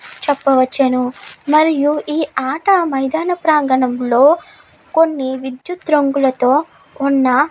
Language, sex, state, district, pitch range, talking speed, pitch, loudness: Telugu, female, Andhra Pradesh, Guntur, 260-315 Hz, 95 wpm, 285 Hz, -15 LUFS